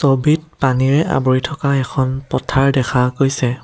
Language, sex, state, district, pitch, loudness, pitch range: Assamese, male, Assam, Kamrup Metropolitan, 135 Hz, -16 LUFS, 130-140 Hz